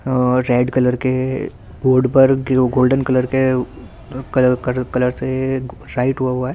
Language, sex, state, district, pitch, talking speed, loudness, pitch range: Hindi, male, Delhi, New Delhi, 130 Hz, 165 wpm, -17 LUFS, 125-130 Hz